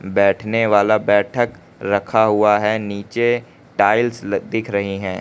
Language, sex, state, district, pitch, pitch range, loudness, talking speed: Hindi, male, Uttar Pradesh, Lucknow, 105 Hz, 100-115 Hz, -18 LUFS, 140 wpm